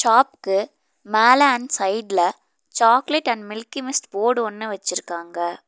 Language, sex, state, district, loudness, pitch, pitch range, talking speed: Tamil, female, Tamil Nadu, Nilgiris, -20 LUFS, 225 Hz, 195-255 Hz, 115 wpm